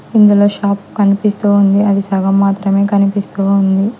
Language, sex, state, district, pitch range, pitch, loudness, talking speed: Telugu, female, Telangana, Hyderabad, 195-205 Hz, 200 Hz, -12 LUFS, 120 wpm